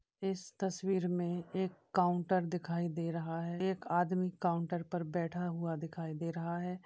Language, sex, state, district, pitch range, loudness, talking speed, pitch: Hindi, female, Uttar Pradesh, Budaun, 170-185 Hz, -36 LUFS, 165 wpm, 175 Hz